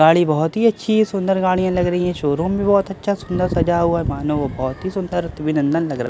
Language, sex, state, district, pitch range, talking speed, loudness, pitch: Hindi, male, Bihar, Katihar, 155-190 Hz, 275 wpm, -19 LUFS, 175 Hz